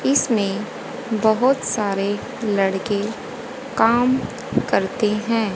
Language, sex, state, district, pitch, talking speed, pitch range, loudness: Hindi, female, Haryana, Rohtak, 225 Hz, 75 wpm, 205-255 Hz, -21 LUFS